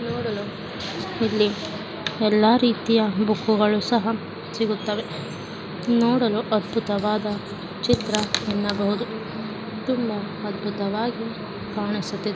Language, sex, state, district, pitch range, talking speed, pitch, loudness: Kannada, female, Karnataka, Chamarajanagar, 205-225 Hz, 70 wpm, 210 Hz, -24 LUFS